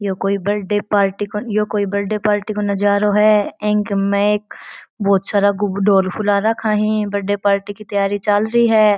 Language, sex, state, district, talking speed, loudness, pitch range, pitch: Marwari, female, Rajasthan, Churu, 185 wpm, -17 LUFS, 200-210 Hz, 205 Hz